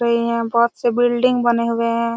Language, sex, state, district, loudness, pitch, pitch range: Hindi, female, Chhattisgarh, Raigarh, -18 LUFS, 235 Hz, 235-240 Hz